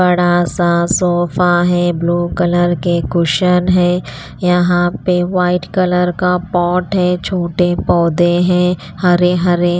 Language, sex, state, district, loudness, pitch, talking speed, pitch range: Hindi, female, Punjab, Pathankot, -14 LUFS, 175 Hz, 130 wpm, 175-180 Hz